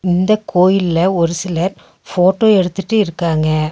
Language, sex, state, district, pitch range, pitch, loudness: Tamil, female, Tamil Nadu, Nilgiris, 170-195 Hz, 180 Hz, -15 LUFS